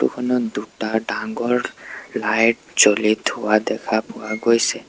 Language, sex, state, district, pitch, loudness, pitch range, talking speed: Assamese, male, Assam, Sonitpur, 110 Hz, -20 LUFS, 110-115 Hz, 125 wpm